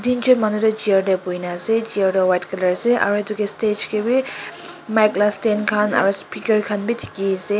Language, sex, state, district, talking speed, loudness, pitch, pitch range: Nagamese, male, Nagaland, Kohima, 215 wpm, -19 LUFS, 210 Hz, 195-225 Hz